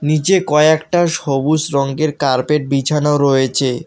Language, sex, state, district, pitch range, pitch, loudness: Bengali, male, West Bengal, Alipurduar, 140-155 Hz, 150 Hz, -15 LUFS